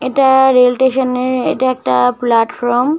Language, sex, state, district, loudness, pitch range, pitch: Bengali, female, West Bengal, Malda, -13 LUFS, 245-265 Hz, 255 Hz